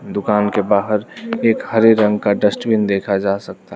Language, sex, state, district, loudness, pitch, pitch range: Hindi, male, Arunachal Pradesh, Lower Dibang Valley, -16 LUFS, 105 Hz, 100-110 Hz